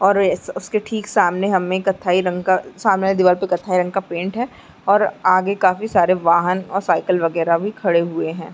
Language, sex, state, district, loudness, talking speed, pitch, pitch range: Hindi, female, Chhattisgarh, Sarguja, -18 LUFS, 205 wpm, 185 Hz, 180-195 Hz